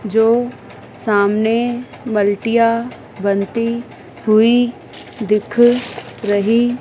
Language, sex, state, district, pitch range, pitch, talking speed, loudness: Hindi, female, Madhya Pradesh, Dhar, 210-240 Hz, 230 Hz, 60 wpm, -16 LUFS